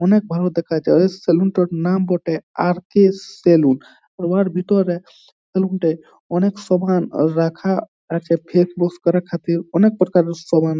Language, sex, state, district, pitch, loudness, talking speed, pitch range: Bengali, male, West Bengal, Jhargram, 175 Hz, -18 LUFS, 150 wpm, 170-185 Hz